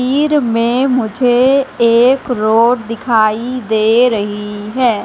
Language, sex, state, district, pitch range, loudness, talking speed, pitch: Hindi, female, Madhya Pradesh, Katni, 220-255 Hz, -13 LUFS, 105 wpm, 240 Hz